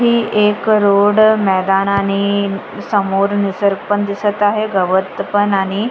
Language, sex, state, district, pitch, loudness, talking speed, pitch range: Marathi, female, Maharashtra, Sindhudurg, 200 Hz, -15 LUFS, 140 wpm, 195-210 Hz